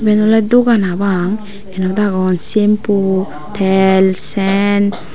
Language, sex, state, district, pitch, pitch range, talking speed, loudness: Chakma, female, Tripura, Dhalai, 200 Hz, 190-210 Hz, 95 wpm, -14 LUFS